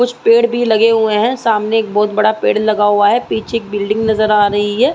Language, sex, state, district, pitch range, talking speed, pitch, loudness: Hindi, female, Uttar Pradesh, Muzaffarnagar, 210-230 Hz, 255 wpm, 215 Hz, -13 LUFS